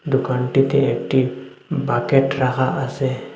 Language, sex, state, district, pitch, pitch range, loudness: Bengali, male, Assam, Hailakandi, 130 Hz, 125-135 Hz, -19 LUFS